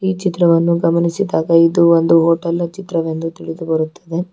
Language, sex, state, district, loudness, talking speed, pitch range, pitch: Kannada, female, Karnataka, Bangalore, -15 LUFS, 110 wpm, 165-175 Hz, 170 Hz